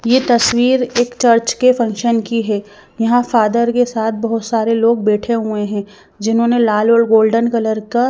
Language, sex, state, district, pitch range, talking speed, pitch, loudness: Hindi, female, Haryana, Jhajjar, 220-240 Hz, 180 wpm, 230 Hz, -15 LUFS